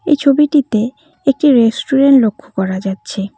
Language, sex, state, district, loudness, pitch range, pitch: Bengali, female, West Bengal, Cooch Behar, -14 LUFS, 210-290 Hz, 270 Hz